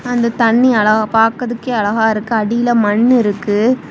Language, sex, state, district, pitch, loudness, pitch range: Tamil, female, Tamil Nadu, Kanyakumari, 225 Hz, -14 LUFS, 215-240 Hz